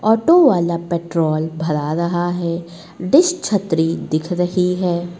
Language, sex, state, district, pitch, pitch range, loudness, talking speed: Hindi, female, Uttar Pradesh, Lucknow, 175 Hz, 165-185 Hz, -17 LUFS, 125 wpm